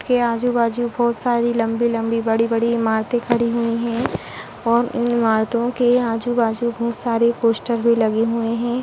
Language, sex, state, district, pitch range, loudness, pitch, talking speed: Hindi, female, Uttar Pradesh, Hamirpur, 230-240 Hz, -19 LUFS, 235 Hz, 150 wpm